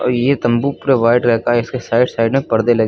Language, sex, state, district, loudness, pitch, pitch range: Hindi, male, Uttar Pradesh, Lucknow, -15 LUFS, 120 Hz, 115-130 Hz